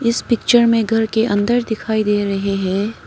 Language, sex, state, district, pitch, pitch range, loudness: Hindi, female, Arunachal Pradesh, Papum Pare, 220 Hz, 205-230 Hz, -17 LUFS